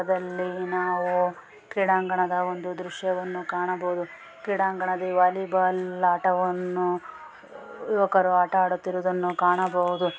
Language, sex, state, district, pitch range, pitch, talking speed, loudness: Kannada, female, Karnataka, Dakshina Kannada, 180-185 Hz, 180 Hz, 80 wpm, -25 LUFS